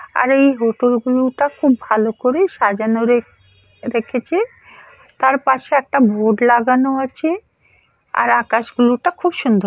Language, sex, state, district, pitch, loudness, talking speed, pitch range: Bengali, female, West Bengal, Purulia, 250 Hz, -16 LUFS, 125 wpm, 230-275 Hz